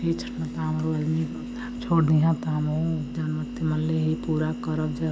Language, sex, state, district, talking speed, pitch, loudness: Awadhi, male, Uttar Pradesh, Varanasi, 140 wpm, 80 Hz, -26 LUFS